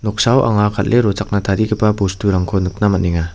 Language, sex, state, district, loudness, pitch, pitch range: Garo, male, Meghalaya, West Garo Hills, -16 LUFS, 105 Hz, 95-105 Hz